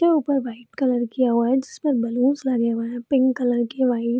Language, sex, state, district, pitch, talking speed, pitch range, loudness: Hindi, female, Bihar, Madhepura, 250 Hz, 245 wpm, 235-265 Hz, -22 LUFS